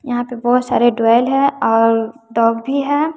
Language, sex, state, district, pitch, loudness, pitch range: Hindi, female, Bihar, West Champaran, 240 Hz, -15 LUFS, 230-270 Hz